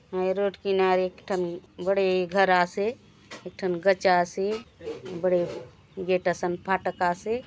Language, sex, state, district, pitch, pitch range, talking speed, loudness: Halbi, female, Chhattisgarh, Bastar, 185 Hz, 180-195 Hz, 145 wpm, -26 LUFS